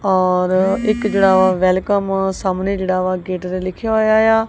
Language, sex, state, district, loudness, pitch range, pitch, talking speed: Punjabi, female, Punjab, Kapurthala, -16 LUFS, 185-205 Hz, 190 Hz, 175 wpm